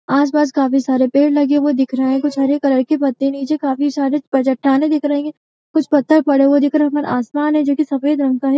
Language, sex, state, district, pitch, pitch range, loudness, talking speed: Hindi, female, Bihar, Jamui, 285 Hz, 270-295 Hz, -16 LUFS, 265 wpm